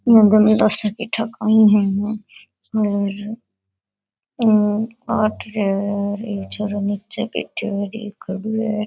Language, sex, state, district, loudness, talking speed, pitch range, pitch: Rajasthani, female, Rajasthan, Nagaur, -19 LUFS, 35 wpm, 200-220 Hz, 210 Hz